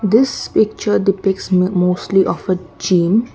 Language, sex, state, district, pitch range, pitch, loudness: English, female, Assam, Kamrup Metropolitan, 180-205 Hz, 190 Hz, -16 LUFS